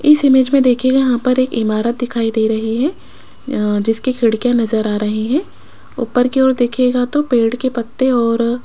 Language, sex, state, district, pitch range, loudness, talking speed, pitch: Hindi, female, Rajasthan, Jaipur, 225-260 Hz, -15 LUFS, 200 wpm, 245 Hz